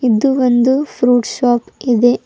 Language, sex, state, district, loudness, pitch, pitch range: Kannada, female, Karnataka, Bidar, -14 LUFS, 245 Hz, 240-260 Hz